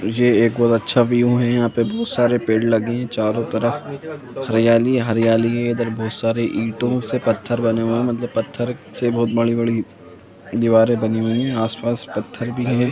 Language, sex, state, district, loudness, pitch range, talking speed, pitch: Hindi, male, Jharkhand, Sahebganj, -19 LUFS, 115-120 Hz, 195 wpm, 115 Hz